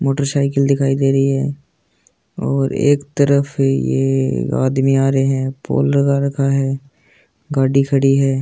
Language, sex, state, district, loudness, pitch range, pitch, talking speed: Hindi, female, Rajasthan, Churu, -16 LUFS, 135-140 Hz, 135 Hz, 145 wpm